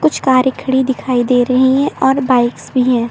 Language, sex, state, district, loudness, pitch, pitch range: Hindi, female, Uttar Pradesh, Lucknow, -14 LUFS, 255 Hz, 245-265 Hz